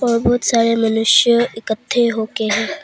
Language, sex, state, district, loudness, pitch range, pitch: Hindi, female, Arunachal Pradesh, Papum Pare, -16 LUFS, 225-240 Hz, 230 Hz